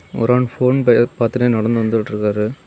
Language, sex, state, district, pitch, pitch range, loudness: Tamil, male, Tamil Nadu, Kanyakumari, 115 Hz, 110-125 Hz, -16 LUFS